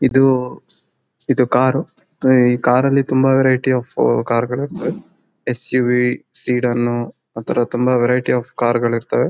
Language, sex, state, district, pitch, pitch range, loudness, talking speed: Kannada, male, Karnataka, Mysore, 125 Hz, 120-130 Hz, -17 LUFS, 155 wpm